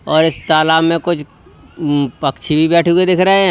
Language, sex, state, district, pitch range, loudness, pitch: Hindi, male, Uttar Pradesh, Lalitpur, 150-170 Hz, -14 LUFS, 160 Hz